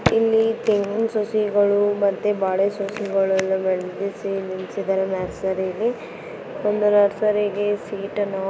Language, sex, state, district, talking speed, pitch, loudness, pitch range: Kannada, female, Karnataka, Belgaum, 90 wpm, 200 Hz, -22 LUFS, 195-210 Hz